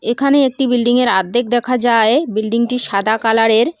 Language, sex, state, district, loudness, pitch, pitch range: Bengali, female, West Bengal, Cooch Behar, -14 LUFS, 240 Hz, 225-250 Hz